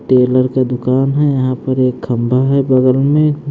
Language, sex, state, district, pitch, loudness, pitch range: Hindi, male, Haryana, Jhajjar, 130 Hz, -14 LUFS, 130-140 Hz